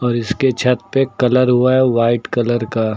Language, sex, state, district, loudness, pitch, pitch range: Hindi, male, Uttar Pradesh, Lucknow, -16 LUFS, 120 Hz, 115-125 Hz